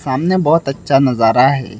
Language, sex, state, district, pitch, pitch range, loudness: Hindi, male, Assam, Hailakandi, 135 Hz, 130-155 Hz, -14 LUFS